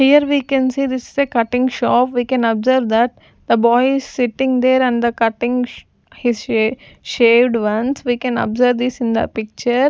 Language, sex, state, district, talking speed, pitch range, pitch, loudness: English, female, Punjab, Fazilka, 195 wpm, 235-260 Hz, 245 Hz, -16 LUFS